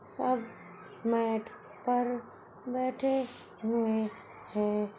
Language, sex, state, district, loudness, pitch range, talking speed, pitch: Hindi, female, Uttar Pradesh, Budaun, -32 LUFS, 220-250 Hz, 70 wpm, 230 Hz